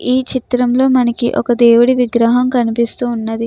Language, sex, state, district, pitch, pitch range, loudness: Telugu, female, Andhra Pradesh, Krishna, 245 Hz, 235-250 Hz, -13 LUFS